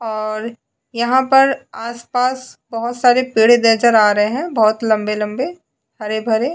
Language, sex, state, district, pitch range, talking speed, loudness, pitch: Hindi, female, Goa, North and South Goa, 220-255 Hz, 135 wpm, -16 LUFS, 235 Hz